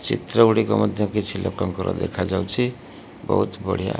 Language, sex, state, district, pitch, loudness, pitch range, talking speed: Odia, male, Odisha, Malkangiri, 105 Hz, -22 LUFS, 95-115 Hz, 120 wpm